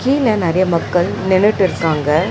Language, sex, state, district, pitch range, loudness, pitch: Tamil, female, Tamil Nadu, Chennai, 170-210 Hz, -15 LUFS, 185 Hz